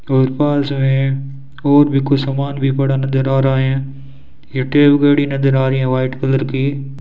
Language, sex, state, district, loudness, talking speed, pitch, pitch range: Hindi, male, Rajasthan, Bikaner, -15 LUFS, 180 wpm, 135 Hz, 135-140 Hz